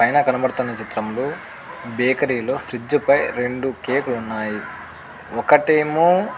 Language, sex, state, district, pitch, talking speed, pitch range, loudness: Telugu, male, Andhra Pradesh, Anantapur, 130 Hz, 120 wpm, 115-145 Hz, -20 LUFS